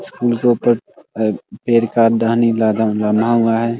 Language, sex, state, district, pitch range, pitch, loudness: Hindi, male, Bihar, Muzaffarpur, 110-120 Hz, 115 Hz, -16 LUFS